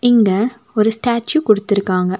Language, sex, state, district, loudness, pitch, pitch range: Tamil, female, Tamil Nadu, Nilgiris, -16 LUFS, 215 Hz, 190-235 Hz